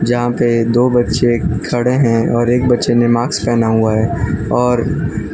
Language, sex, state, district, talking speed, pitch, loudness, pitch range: Hindi, male, Gujarat, Valsad, 170 wpm, 120 Hz, -14 LUFS, 115-125 Hz